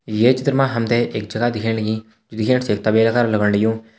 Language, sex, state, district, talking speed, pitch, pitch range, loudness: Hindi, male, Uttarakhand, Uttarkashi, 240 wpm, 110 Hz, 110-120 Hz, -19 LUFS